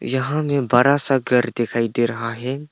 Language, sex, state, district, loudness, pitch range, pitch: Hindi, male, Arunachal Pradesh, Papum Pare, -19 LUFS, 120-140 Hz, 125 Hz